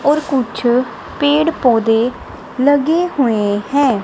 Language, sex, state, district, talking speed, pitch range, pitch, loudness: Hindi, female, Punjab, Kapurthala, 105 wpm, 230-290 Hz, 265 Hz, -15 LUFS